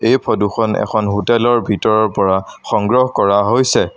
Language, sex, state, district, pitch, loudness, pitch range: Assamese, male, Assam, Sonitpur, 110 Hz, -15 LUFS, 100-120 Hz